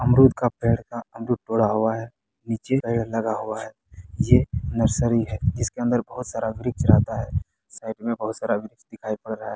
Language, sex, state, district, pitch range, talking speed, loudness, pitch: Hindi, male, Bihar, Begusarai, 110-120 Hz, 200 wpm, -23 LUFS, 115 Hz